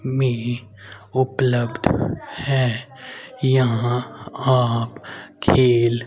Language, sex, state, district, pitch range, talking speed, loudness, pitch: Hindi, male, Haryana, Rohtak, 115-130 Hz, 60 wpm, -21 LUFS, 125 Hz